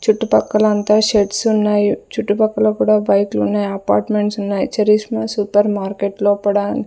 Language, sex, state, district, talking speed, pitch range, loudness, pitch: Telugu, female, Andhra Pradesh, Sri Satya Sai, 105 wpm, 200-215 Hz, -16 LUFS, 205 Hz